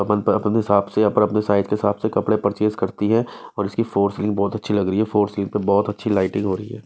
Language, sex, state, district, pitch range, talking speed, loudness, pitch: Hindi, male, Bihar, West Champaran, 100-105 Hz, 290 wpm, -20 LUFS, 105 Hz